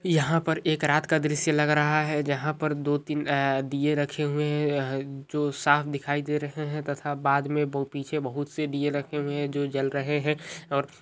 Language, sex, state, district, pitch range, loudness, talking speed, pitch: Hindi, male, Andhra Pradesh, Chittoor, 140-150 Hz, -27 LUFS, 225 wpm, 145 Hz